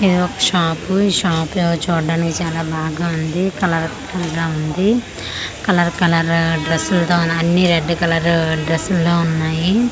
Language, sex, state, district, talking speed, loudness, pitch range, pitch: Telugu, female, Andhra Pradesh, Manyam, 140 wpm, -17 LUFS, 165-180 Hz, 170 Hz